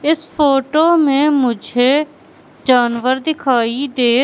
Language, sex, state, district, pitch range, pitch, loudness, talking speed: Hindi, female, Madhya Pradesh, Katni, 250-300 Hz, 275 Hz, -15 LUFS, 100 wpm